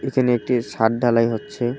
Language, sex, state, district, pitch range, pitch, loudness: Bengali, male, West Bengal, Cooch Behar, 115-130 Hz, 120 Hz, -20 LUFS